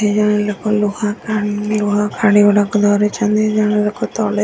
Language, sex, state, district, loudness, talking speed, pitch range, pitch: Odia, female, Odisha, Nuapada, -15 LUFS, 160 wpm, 205-210 Hz, 210 Hz